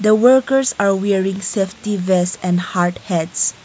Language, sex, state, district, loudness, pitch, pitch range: English, female, Nagaland, Kohima, -17 LUFS, 195 Hz, 180-210 Hz